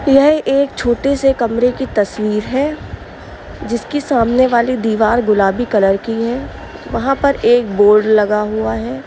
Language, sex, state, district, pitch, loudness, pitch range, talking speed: Hindi, female, Uttar Pradesh, Varanasi, 235 Hz, -15 LUFS, 215-270 Hz, 150 wpm